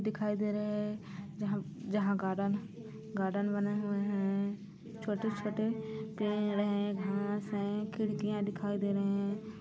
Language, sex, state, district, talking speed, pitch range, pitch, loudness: Hindi, female, Chhattisgarh, Korba, 130 wpm, 200-210 Hz, 205 Hz, -35 LUFS